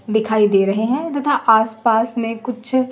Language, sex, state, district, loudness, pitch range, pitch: Hindi, female, Chhattisgarh, Raipur, -17 LUFS, 220-250 Hz, 230 Hz